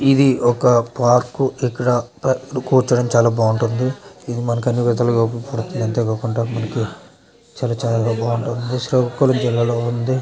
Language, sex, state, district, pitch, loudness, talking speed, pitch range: Telugu, male, Andhra Pradesh, Srikakulam, 120 Hz, -18 LUFS, 130 wpm, 115-125 Hz